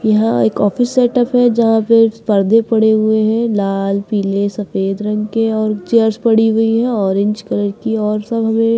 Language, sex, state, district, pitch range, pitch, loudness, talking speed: Hindi, female, Bihar, Patna, 205-225 Hz, 220 Hz, -14 LUFS, 185 wpm